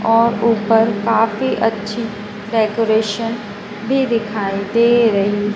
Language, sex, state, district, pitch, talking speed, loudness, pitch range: Hindi, female, Madhya Pradesh, Dhar, 225 Hz, 95 wpm, -17 LUFS, 210-230 Hz